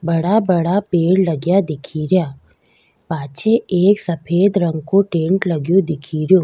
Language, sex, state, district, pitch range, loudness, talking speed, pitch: Rajasthani, female, Rajasthan, Nagaur, 160-190 Hz, -17 LUFS, 120 wpm, 175 Hz